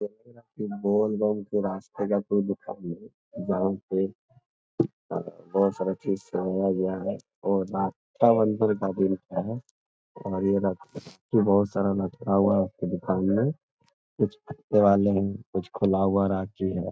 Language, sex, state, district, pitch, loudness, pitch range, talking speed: Hindi, male, Bihar, Jamui, 100 Hz, -26 LUFS, 95-105 Hz, 105 wpm